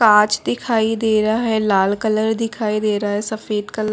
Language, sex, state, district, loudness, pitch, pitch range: Hindi, female, Chhattisgarh, Korba, -18 LUFS, 215 Hz, 210-220 Hz